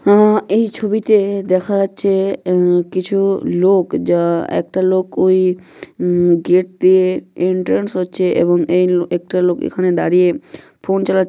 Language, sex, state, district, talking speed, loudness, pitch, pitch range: Bengali, male, West Bengal, North 24 Parganas, 125 wpm, -15 LUFS, 185 Hz, 175-195 Hz